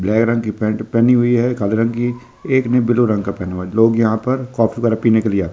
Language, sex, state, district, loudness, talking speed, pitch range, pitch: Hindi, male, Delhi, New Delhi, -16 LUFS, 305 wpm, 110-120 Hz, 115 Hz